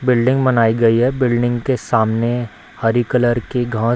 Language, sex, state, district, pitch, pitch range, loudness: Hindi, female, Bihar, Samastipur, 120 Hz, 115-125 Hz, -17 LUFS